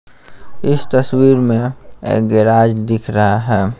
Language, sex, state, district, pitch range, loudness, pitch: Hindi, male, Bihar, Patna, 110-130 Hz, -14 LUFS, 115 Hz